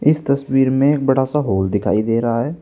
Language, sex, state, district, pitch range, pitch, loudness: Hindi, male, Uttar Pradesh, Saharanpur, 115-145 Hz, 135 Hz, -17 LUFS